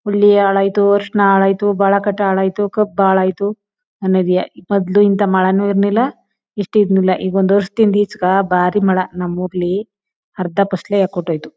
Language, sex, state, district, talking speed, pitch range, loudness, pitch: Kannada, female, Karnataka, Chamarajanagar, 155 wpm, 190-205 Hz, -15 LUFS, 195 Hz